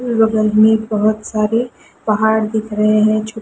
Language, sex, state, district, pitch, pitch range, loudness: Hindi, female, Chhattisgarh, Sukma, 215 Hz, 215-220 Hz, -15 LUFS